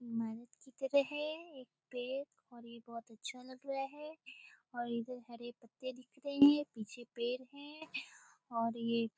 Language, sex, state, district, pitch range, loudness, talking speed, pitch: Hindi, female, Bihar, Samastipur, 235-275 Hz, -39 LUFS, 175 wpm, 250 Hz